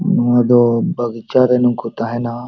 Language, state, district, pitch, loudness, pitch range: Santali, Jharkhand, Sahebganj, 120 Hz, -15 LUFS, 120-125 Hz